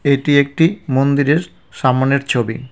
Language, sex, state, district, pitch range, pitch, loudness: Bengali, male, West Bengal, Cooch Behar, 130-145 Hz, 140 Hz, -16 LUFS